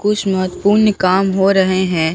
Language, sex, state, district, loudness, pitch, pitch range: Hindi, female, Bihar, Katihar, -14 LUFS, 190 Hz, 185-200 Hz